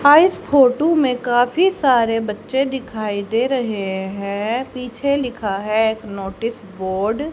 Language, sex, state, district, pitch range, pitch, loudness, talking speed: Hindi, female, Haryana, Jhajjar, 210-270 Hz, 235 Hz, -19 LUFS, 145 wpm